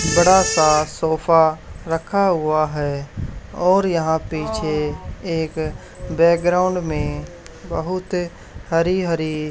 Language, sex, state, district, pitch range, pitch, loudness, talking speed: Hindi, male, Haryana, Charkhi Dadri, 155-175 Hz, 160 Hz, -19 LUFS, 100 wpm